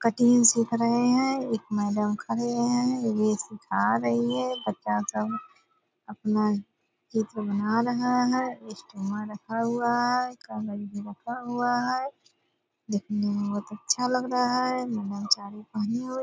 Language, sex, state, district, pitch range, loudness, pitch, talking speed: Hindi, female, Bihar, Purnia, 205-245 Hz, -27 LUFS, 225 Hz, 130 wpm